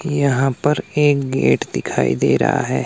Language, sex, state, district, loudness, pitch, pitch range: Hindi, male, Himachal Pradesh, Shimla, -18 LUFS, 145 Hz, 135-150 Hz